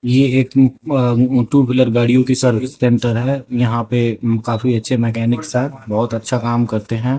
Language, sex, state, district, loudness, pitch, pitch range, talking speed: Hindi, male, Rajasthan, Jaipur, -16 LUFS, 125 Hz, 115-130 Hz, 175 wpm